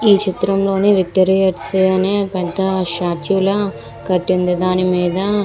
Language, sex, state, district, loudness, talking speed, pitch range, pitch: Telugu, female, Andhra Pradesh, Visakhapatnam, -16 LUFS, 155 wpm, 180-195 Hz, 190 Hz